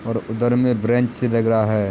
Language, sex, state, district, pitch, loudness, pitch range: Hindi, male, Uttar Pradesh, Hamirpur, 115 Hz, -19 LUFS, 110-120 Hz